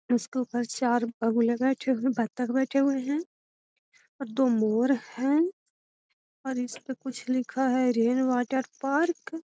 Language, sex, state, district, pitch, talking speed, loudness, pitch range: Magahi, female, Bihar, Gaya, 255 Hz, 135 wpm, -27 LUFS, 240-270 Hz